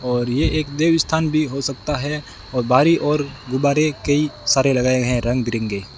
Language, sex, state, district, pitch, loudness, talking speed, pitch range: Hindi, male, Rajasthan, Bikaner, 135 Hz, -19 LUFS, 190 wpm, 125-150 Hz